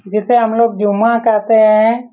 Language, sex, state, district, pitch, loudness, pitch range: Hindi, male, Bihar, Saran, 225 Hz, -12 LUFS, 215-230 Hz